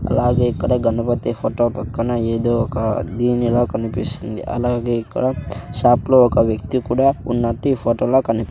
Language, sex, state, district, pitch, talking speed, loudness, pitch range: Telugu, male, Andhra Pradesh, Sri Satya Sai, 120 Hz, 140 wpm, -19 LUFS, 115-120 Hz